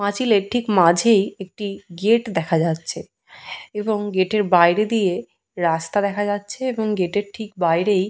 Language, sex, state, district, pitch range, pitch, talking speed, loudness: Bengali, female, Jharkhand, Jamtara, 180-215 Hz, 205 Hz, 140 wpm, -20 LUFS